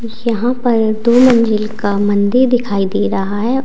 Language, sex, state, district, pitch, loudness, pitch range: Hindi, female, Uttar Pradesh, Lalitpur, 225 Hz, -14 LUFS, 205-240 Hz